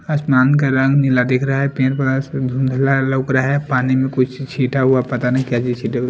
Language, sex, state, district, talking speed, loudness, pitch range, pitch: Hindi, male, Delhi, New Delhi, 235 wpm, -17 LUFS, 130-135 Hz, 130 Hz